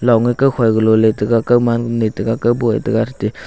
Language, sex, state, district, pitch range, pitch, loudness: Wancho, male, Arunachal Pradesh, Longding, 110-120 Hz, 115 Hz, -15 LUFS